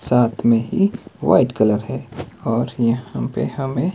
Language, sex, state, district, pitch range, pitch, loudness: Hindi, male, Himachal Pradesh, Shimla, 115-130 Hz, 120 Hz, -19 LUFS